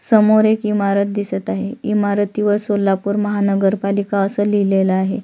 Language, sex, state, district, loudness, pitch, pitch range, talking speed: Marathi, female, Maharashtra, Solapur, -17 LUFS, 205 Hz, 195-210 Hz, 150 wpm